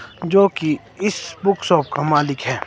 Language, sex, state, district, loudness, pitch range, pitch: Hindi, male, Himachal Pradesh, Shimla, -19 LUFS, 145-195 Hz, 170 Hz